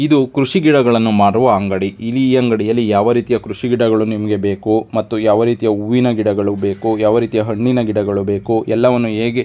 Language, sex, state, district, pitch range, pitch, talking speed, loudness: Kannada, male, Karnataka, Dharwad, 105-120 Hz, 110 Hz, 165 wpm, -15 LUFS